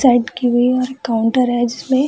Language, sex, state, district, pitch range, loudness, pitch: Hindi, female, Bihar, Samastipur, 240-255 Hz, -16 LUFS, 245 Hz